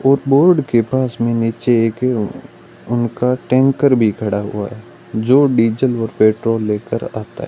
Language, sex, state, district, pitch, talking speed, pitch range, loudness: Hindi, male, Rajasthan, Bikaner, 120 Hz, 160 wpm, 110-130 Hz, -16 LUFS